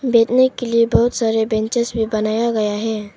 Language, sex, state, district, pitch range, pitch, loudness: Hindi, female, Arunachal Pradesh, Papum Pare, 220-235 Hz, 225 Hz, -17 LUFS